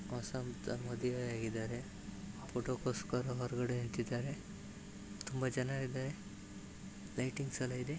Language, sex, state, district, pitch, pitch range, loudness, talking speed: Kannada, male, Karnataka, Raichur, 125 Hz, 120-130 Hz, -41 LUFS, 100 wpm